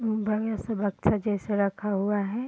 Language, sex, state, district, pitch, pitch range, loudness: Hindi, female, Bihar, Sitamarhi, 210 Hz, 205-220 Hz, -27 LUFS